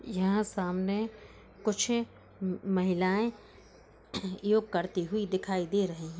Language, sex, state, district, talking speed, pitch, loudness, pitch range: Hindi, female, Uttar Pradesh, Hamirpur, 105 wpm, 195 Hz, -31 LUFS, 185-215 Hz